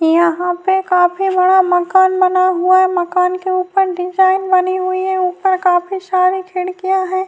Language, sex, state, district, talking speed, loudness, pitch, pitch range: Urdu, female, Bihar, Saharsa, 165 wpm, -14 LUFS, 370 Hz, 360-375 Hz